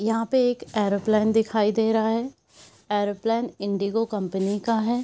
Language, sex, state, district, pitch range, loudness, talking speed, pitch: Hindi, female, Bihar, Araria, 205-230 Hz, -24 LUFS, 155 wpm, 220 Hz